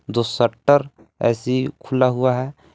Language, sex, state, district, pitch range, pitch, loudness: Hindi, male, Jharkhand, Palamu, 115-130 Hz, 125 Hz, -20 LUFS